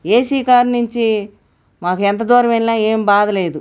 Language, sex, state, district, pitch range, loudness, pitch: Telugu, male, Andhra Pradesh, Guntur, 205-240 Hz, -15 LUFS, 220 Hz